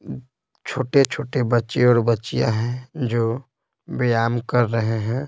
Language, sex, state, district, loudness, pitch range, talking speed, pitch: Hindi, male, Bihar, Patna, -21 LUFS, 115-130 Hz, 115 wpm, 120 Hz